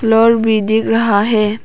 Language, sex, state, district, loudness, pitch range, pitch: Hindi, female, Arunachal Pradesh, Papum Pare, -13 LUFS, 215-225 Hz, 225 Hz